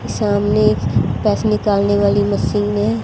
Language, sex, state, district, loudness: Hindi, female, Haryana, Jhajjar, -16 LUFS